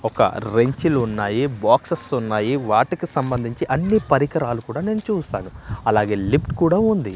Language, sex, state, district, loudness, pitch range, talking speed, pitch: Telugu, male, Andhra Pradesh, Manyam, -20 LUFS, 110-170 Hz, 135 wpm, 135 Hz